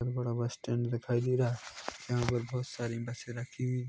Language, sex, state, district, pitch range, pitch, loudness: Hindi, male, Chhattisgarh, Korba, 120-125 Hz, 120 Hz, -34 LUFS